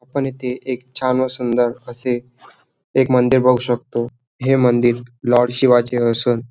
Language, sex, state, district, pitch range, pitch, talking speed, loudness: Marathi, male, Maharashtra, Dhule, 120-130 Hz, 125 Hz, 145 wpm, -18 LUFS